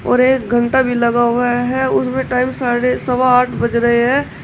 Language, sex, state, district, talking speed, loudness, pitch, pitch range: Hindi, female, Uttar Pradesh, Shamli, 200 wpm, -15 LUFS, 250 Hz, 240-255 Hz